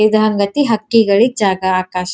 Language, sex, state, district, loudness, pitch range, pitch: Kannada, female, Karnataka, Dharwad, -14 LUFS, 190-225 Hz, 215 Hz